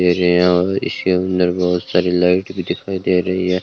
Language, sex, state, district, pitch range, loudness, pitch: Hindi, male, Rajasthan, Bikaner, 90-95 Hz, -17 LUFS, 90 Hz